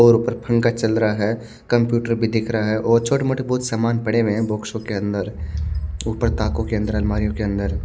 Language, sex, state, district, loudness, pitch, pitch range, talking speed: Hindi, male, Haryana, Charkhi Dadri, -21 LUFS, 110 Hz, 105-115 Hz, 235 wpm